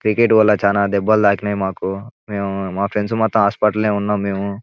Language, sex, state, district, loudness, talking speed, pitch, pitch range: Telugu, male, Telangana, Nalgonda, -17 LUFS, 180 wpm, 100 Hz, 100-110 Hz